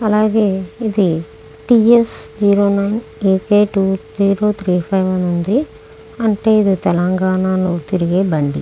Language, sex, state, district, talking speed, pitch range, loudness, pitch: Telugu, female, Andhra Pradesh, Krishna, 125 wpm, 180-210 Hz, -15 LUFS, 195 Hz